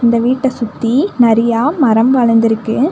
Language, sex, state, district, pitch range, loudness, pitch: Tamil, female, Tamil Nadu, Nilgiris, 230-260 Hz, -12 LUFS, 235 Hz